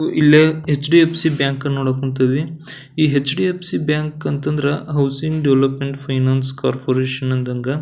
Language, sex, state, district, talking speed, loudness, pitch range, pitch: Kannada, male, Karnataka, Belgaum, 130 wpm, -17 LUFS, 135-155 Hz, 140 Hz